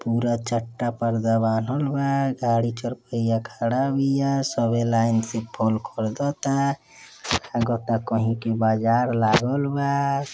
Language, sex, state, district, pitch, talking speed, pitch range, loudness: Bhojpuri, male, Uttar Pradesh, Deoria, 120 Hz, 115 wpm, 115-135 Hz, -23 LUFS